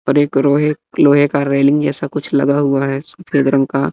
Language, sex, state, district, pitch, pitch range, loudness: Hindi, male, Bihar, West Champaran, 140 Hz, 135-145 Hz, -15 LUFS